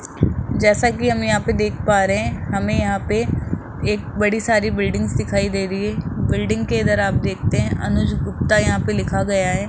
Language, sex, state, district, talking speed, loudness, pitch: Hindi, female, Rajasthan, Jaipur, 205 wpm, -19 LUFS, 195 Hz